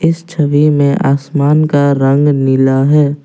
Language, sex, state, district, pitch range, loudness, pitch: Hindi, male, Assam, Kamrup Metropolitan, 140-150 Hz, -11 LUFS, 145 Hz